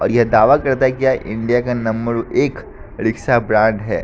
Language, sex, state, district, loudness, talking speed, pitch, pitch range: Hindi, male, Bihar, Katihar, -16 LUFS, 205 wpm, 115 Hz, 110-130 Hz